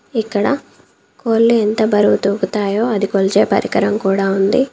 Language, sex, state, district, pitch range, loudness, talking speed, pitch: Telugu, female, Telangana, Komaram Bheem, 200-225 Hz, -15 LUFS, 125 wpm, 210 Hz